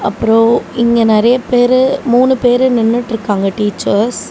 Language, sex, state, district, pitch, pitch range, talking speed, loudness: Tamil, female, Tamil Nadu, Namakkal, 235 Hz, 220-245 Hz, 125 wpm, -12 LUFS